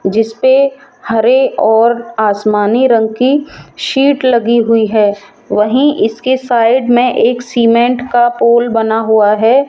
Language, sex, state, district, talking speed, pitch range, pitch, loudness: Hindi, female, Rajasthan, Jaipur, 135 wpm, 220-255 Hz, 235 Hz, -11 LUFS